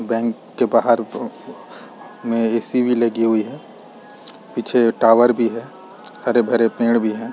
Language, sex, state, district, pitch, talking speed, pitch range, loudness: Hindi, male, Chhattisgarh, Raigarh, 115 Hz, 145 wpm, 115-120 Hz, -18 LUFS